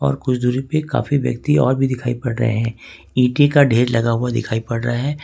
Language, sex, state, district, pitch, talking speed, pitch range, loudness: Hindi, male, Jharkhand, Ranchi, 125 Hz, 195 wpm, 115-135 Hz, -18 LUFS